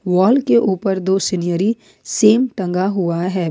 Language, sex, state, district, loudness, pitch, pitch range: Hindi, female, Jharkhand, Ranchi, -17 LUFS, 190 Hz, 180-215 Hz